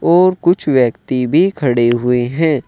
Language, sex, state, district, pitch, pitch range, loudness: Hindi, male, Uttar Pradesh, Saharanpur, 140 Hz, 125-170 Hz, -14 LUFS